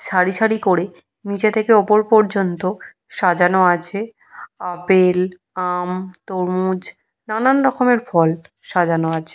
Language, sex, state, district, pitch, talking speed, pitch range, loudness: Bengali, female, Jharkhand, Jamtara, 185 Hz, 110 wpm, 180-215 Hz, -18 LUFS